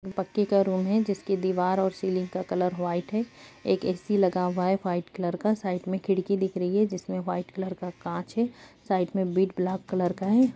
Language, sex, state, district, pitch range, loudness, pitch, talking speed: Hindi, female, Chhattisgarh, Kabirdham, 180-195 Hz, -28 LUFS, 185 Hz, 215 wpm